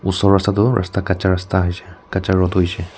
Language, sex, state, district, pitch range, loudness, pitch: Nagamese, male, Nagaland, Kohima, 90-100 Hz, -18 LUFS, 95 Hz